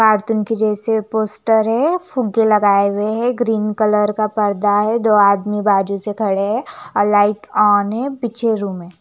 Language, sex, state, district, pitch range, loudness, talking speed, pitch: Hindi, female, Chandigarh, Chandigarh, 205-225 Hz, -16 LUFS, 175 wpm, 215 Hz